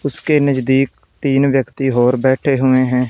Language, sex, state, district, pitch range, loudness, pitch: Hindi, male, Punjab, Fazilka, 130-135 Hz, -15 LUFS, 130 Hz